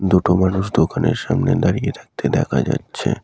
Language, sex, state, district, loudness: Bengali, male, West Bengal, Malda, -19 LUFS